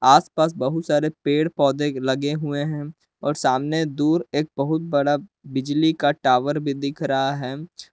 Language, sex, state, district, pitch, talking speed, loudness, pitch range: Hindi, male, Jharkhand, Palamu, 145 Hz, 160 wpm, -22 LUFS, 140-155 Hz